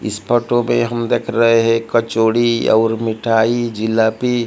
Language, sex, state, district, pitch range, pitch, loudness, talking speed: Hindi, male, Odisha, Malkangiri, 110-120 Hz, 115 Hz, -16 LUFS, 145 wpm